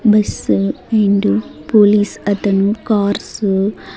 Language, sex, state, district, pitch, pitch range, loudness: Telugu, female, Andhra Pradesh, Sri Satya Sai, 205 Hz, 190-210 Hz, -15 LUFS